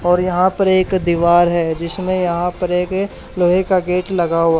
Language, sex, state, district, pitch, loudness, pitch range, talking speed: Hindi, male, Haryana, Charkhi Dadri, 180 Hz, -16 LUFS, 175-185 Hz, 195 wpm